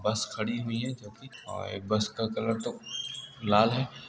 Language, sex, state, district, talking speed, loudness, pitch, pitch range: Hindi, male, Uttar Pradesh, Hamirpur, 190 wpm, -31 LUFS, 115 Hz, 105-125 Hz